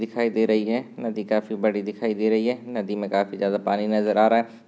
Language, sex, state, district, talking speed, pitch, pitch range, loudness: Hindi, male, Maharashtra, Sindhudurg, 255 wpm, 110 Hz, 105-115 Hz, -24 LUFS